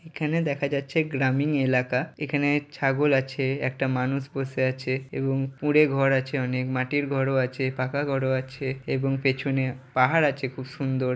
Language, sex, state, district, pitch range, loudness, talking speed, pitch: Bengali, male, West Bengal, Purulia, 130-145 Hz, -25 LUFS, 165 wpm, 135 Hz